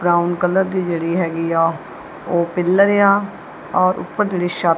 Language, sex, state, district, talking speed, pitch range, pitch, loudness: Punjabi, female, Punjab, Kapurthala, 165 wpm, 170-190 Hz, 175 Hz, -18 LUFS